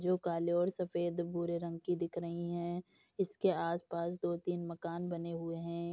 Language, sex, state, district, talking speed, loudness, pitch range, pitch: Hindi, female, Uttar Pradesh, Etah, 170 wpm, -37 LUFS, 170-175 Hz, 170 Hz